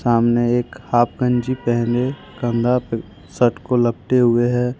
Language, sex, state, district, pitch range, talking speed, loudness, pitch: Hindi, male, Jharkhand, Ranchi, 120-125 Hz, 150 wpm, -19 LUFS, 120 Hz